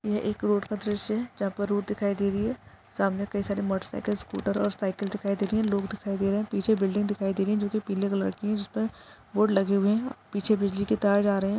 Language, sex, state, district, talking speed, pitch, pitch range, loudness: Hindi, female, Maharashtra, Chandrapur, 270 wpm, 205 Hz, 200-210 Hz, -28 LUFS